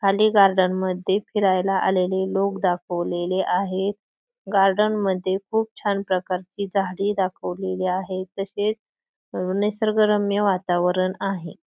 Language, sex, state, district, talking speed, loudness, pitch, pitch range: Marathi, female, Maharashtra, Pune, 110 wpm, -22 LUFS, 195 Hz, 185-205 Hz